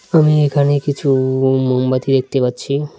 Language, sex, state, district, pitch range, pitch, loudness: Bengali, male, West Bengal, Cooch Behar, 130-145 Hz, 135 Hz, -15 LUFS